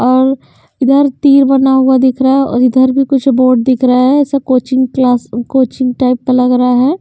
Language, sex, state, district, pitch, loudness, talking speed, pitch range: Hindi, female, Haryana, Jhajjar, 260 Hz, -10 LUFS, 215 wpm, 250-270 Hz